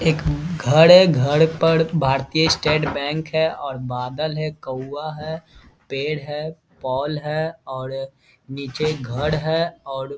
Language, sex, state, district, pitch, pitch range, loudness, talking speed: Hindi, male, Bihar, Vaishali, 150 Hz, 135-160 Hz, -20 LUFS, 140 wpm